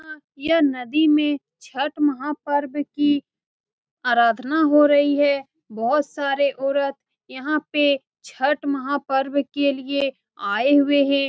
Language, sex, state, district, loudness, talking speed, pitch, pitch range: Hindi, female, Bihar, Saran, -21 LUFS, 120 wpm, 285 Hz, 275-295 Hz